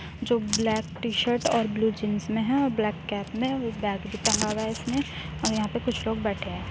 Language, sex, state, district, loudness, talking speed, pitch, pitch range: Hindi, female, Uttar Pradesh, Muzaffarnagar, -27 LUFS, 225 wpm, 220 Hz, 210-235 Hz